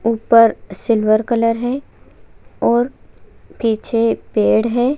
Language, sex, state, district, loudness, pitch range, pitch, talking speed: Hindi, female, Chhattisgarh, Kabirdham, -16 LUFS, 220-240 Hz, 230 Hz, 95 wpm